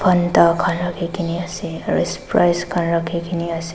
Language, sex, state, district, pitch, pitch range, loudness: Nagamese, female, Nagaland, Dimapur, 170 Hz, 170-175 Hz, -19 LUFS